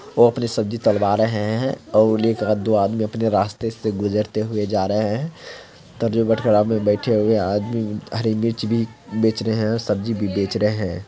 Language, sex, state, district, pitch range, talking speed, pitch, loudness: Hindi, male, Bihar, Samastipur, 105-115 Hz, 205 wpm, 110 Hz, -20 LUFS